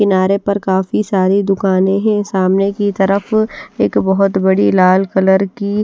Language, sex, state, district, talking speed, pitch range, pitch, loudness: Hindi, female, Odisha, Nuapada, 155 wpm, 190-200 Hz, 195 Hz, -14 LUFS